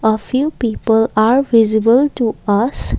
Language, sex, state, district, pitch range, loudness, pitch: English, female, Assam, Kamrup Metropolitan, 220-255 Hz, -14 LUFS, 230 Hz